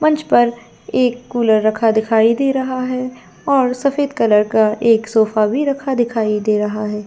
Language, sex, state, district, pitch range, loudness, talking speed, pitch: Hindi, female, Jharkhand, Jamtara, 220-255 Hz, -16 LUFS, 195 wpm, 235 Hz